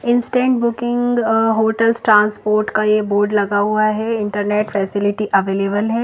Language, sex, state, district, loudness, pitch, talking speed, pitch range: Hindi, female, Himachal Pradesh, Shimla, -16 LUFS, 215 Hz, 140 wpm, 205-230 Hz